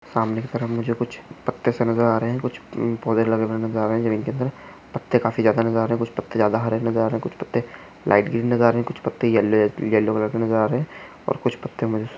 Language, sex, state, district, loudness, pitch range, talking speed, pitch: Hindi, male, Maharashtra, Chandrapur, -22 LUFS, 110-120 Hz, 270 wpm, 115 Hz